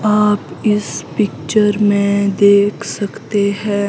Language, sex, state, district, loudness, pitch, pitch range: Hindi, female, Himachal Pradesh, Shimla, -15 LUFS, 205 Hz, 200-210 Hz